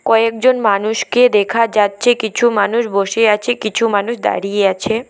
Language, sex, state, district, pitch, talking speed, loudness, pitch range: Bengali, female, West Bengal, Alipurduar, 225 Hz, 140 wpm, -14 LUFS, 205-235 Hz